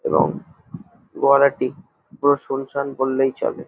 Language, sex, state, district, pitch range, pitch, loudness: Bengali, male, West Bengal, Jalpaiguri, 135-140 Hz, 140 Hz, -20 LUFS